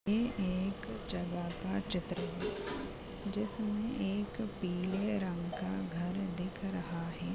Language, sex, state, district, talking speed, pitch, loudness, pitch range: Hindi, female, Chhattisgarh, Jashpur, 120 wpm, 190 Hz, -37 LUFS, 175-205 Hz